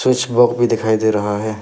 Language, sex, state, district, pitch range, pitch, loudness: Hindi, male, Arunachal Pradesh, Papum Pare, 110-120 Hz, 110 Hz, -16 LUFS